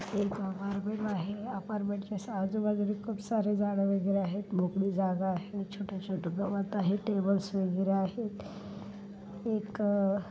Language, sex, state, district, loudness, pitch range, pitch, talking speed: Marathi, female, Maharashtra, Pune, -32 LUFS, 195-205 Hz, 200 Hz, 145 wpm